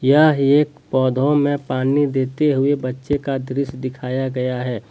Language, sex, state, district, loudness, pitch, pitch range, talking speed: Hindi, male, Jharkhand, Deoghar, -19 LUFS, 135 Hz, 130-145 Hz, 160 wpm